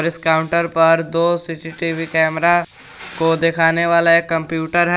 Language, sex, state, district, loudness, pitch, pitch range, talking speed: Hindi, male, Jharkhand, Garhwa, -16 LUFS, 165 Hz, 165-170 Hz, 145 wpm